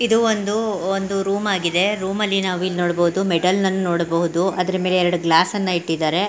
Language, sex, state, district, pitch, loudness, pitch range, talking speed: Kannada, female, Karnataka, Mysore, 185 Hz, -19 LUFS, 175-195 Hz, 170 wpm